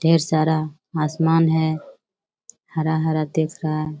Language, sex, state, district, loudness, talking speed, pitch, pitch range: Hindi, female, Bihar, Jamui, -21 LUFS, 120 wpm, 160 Hz, 155-165 Hz